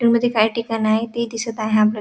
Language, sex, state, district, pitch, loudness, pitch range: Marathi, female, Maharashtra, Dhule, 225 Hz, -19 LUFS, 215-230 Hz